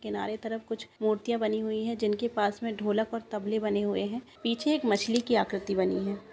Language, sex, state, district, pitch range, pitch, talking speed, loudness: Hindi, female, Bihar, Saharsa, 210-230 Hz, 220 Hz, 210 wpm, -30 LUFS